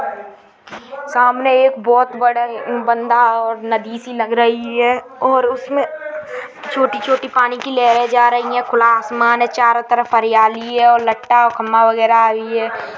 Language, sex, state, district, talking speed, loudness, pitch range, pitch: Hindi, male, Uttar Pradesh, Jalaun, 150 wpm, -15 LUFS, 230-250 Hz, 240 Hz